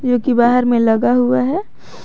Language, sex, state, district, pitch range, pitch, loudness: Hindi, male, Jharkhand, Garhwa, 240-255 Hz, 245 Hz, -15 LUFS